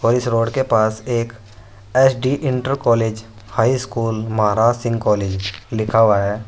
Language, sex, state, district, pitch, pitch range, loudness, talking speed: Hindi, male, Uttar Pradesh, Saharanpur, 115 Hz, 105-120 Hz, -18 LUFS, 165 wpm